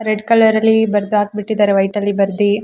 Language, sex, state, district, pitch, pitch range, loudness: Kannada, female, Karnataka, Shimoga, 210 Hz, 205-220 Hz, -15 LUFS